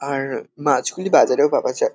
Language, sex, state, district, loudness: Bengali, male, West Bengal, Kolkata, -19 LUFS